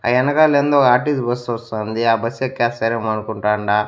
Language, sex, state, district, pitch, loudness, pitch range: Telugu, male, Andhra Pradesh, Annamaya, 115 Hz, -18 LUFS, 110-125 Hz